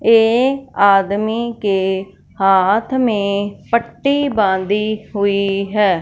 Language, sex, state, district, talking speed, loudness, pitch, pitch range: Hindi, female, Punjab, Fazilka, 90 wpm, -16 LUFS, 205 Hz, 195-230 Hz